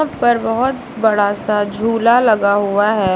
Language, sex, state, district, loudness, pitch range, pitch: Hindi, female, Uttar Pradesh, Lucknow, -15 LUFS, 205-235 Hz, 220 Hz